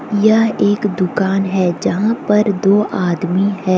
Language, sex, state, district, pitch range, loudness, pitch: Hindi, female, Jharkhand, Deoghar, 185-210 Hz, -15 LUFS, 200 Hz